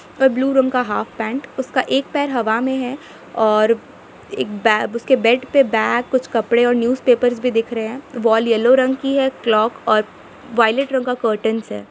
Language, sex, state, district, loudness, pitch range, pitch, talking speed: Hindi, female, Jharkhand, Sahebganj, -18 LUFS, 225-260 Hz, 245 Hz, 200 wpm